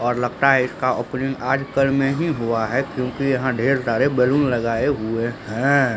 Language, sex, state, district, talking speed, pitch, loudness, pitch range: Hindi, male, Bihar, Begusarai, 180 wpm, 130 Hz, -20 LUFS, 120-135 Hz